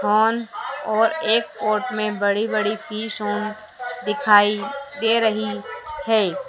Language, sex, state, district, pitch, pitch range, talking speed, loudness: Hindi, female, Madhya Pradesh, Dhar, 220 Hz, 210-245 Hz, 100 wpm, -20 LUFS